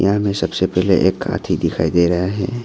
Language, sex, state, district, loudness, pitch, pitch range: Hindi, male, Arunachal Pradesh, Longding, -18 LUFS, 95 Hz, 85-100 Hz